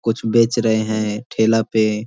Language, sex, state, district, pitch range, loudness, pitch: Hindi, male, Uttar Pradesh, Ghazipur, 110-115 Hz, -18 LUFS, 110 Hz